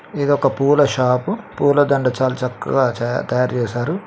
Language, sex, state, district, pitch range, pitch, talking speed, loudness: Telugu, male, Telangana, Mahabubabad, 125-145 Hz, 130 Hz, 135 wpm, -18 LUFS